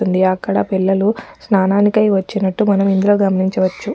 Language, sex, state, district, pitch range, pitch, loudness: Telugu, female, Telangana, Nalgonda, 190-205 Hz, 195 Hz, -15 LUFS